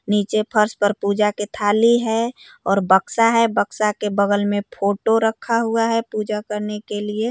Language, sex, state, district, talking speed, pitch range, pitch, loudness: Hindi, female, Jharkhand, Garhwa, 180 wpm, 205-230 Hz, 210 Hz, -19 LUFS